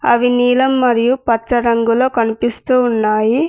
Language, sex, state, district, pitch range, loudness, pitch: Telugu, female, Telangana, Mahabubabad, 230-250 Hz, -14 LUFS, 240 Hz